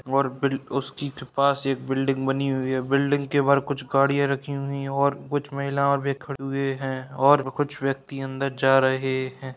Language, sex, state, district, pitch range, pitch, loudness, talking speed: Hindi, male, Bihar, Purnia, 135-140 Hz, 135 Hz, -24 LUFS, 200 wpm